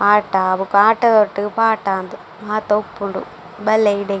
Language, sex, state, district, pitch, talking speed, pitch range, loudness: Tulu, female, Karnataka, Dakshina Kannada, 205 Hz, 155 wpm, 195-215 Hz, -17 LUFS